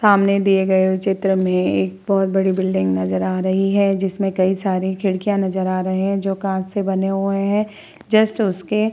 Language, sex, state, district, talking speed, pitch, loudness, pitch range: Hindi, female, Bihar, Vaishali, 200 wpm, 195 Hz, -19 LUFS, 185-195 Hz